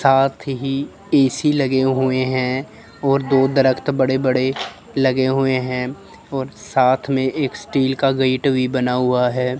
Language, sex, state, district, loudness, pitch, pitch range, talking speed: Hindi, male, Chandigarh, Chandigarh, -19 LUFS, 130 Hz, 130-135 Hz, 155 wpm